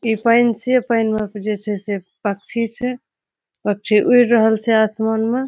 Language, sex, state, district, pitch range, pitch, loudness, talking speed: Maithili, female, Bihar, Saharsa, 210-235 Hz, 220 Hz, -18 LUFS, 165 wpm